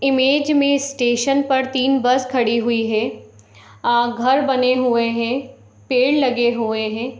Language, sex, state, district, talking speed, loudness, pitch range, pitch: Hindi, female, Bihar, Darbhanga, 150 wpm, -18 LUFS, 230-265 Hz, 245 Hz